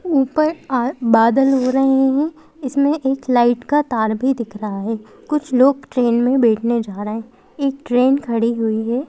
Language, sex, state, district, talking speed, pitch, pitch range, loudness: Hindi, female, Madhya Pradesh, Bhopal, 185 wpm, 255 Hz, 230-275 Hz, -17 LUFS